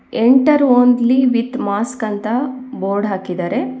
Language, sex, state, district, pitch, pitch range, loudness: Kannada, female, Karnataka, Bangalore, 245 Hz, 210-260 Hz, -16 LUFS